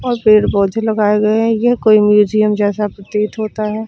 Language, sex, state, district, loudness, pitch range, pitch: Hindi, female, Chandigarh, Chandigarh, -14 LUFS, 210-220 Hz, 215 Hz